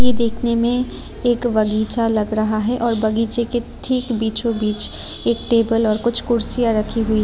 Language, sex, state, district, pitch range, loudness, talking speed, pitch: Hindi, female, Tripura, Unakoti, 215-235 Hz, -18 LUFS, 165 wpm, 230 Hz